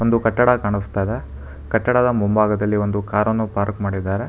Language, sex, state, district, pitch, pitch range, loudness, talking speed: Kannada, male, Karnataka, Bangalore, 105 Hz, 100-115 Hz, -19 LUFS, 155 wpm